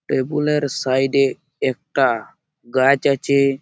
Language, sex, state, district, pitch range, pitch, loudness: Bengali, male, West Bengal, Malda, 130-140 Hz, 135 Hz, -19 LUFS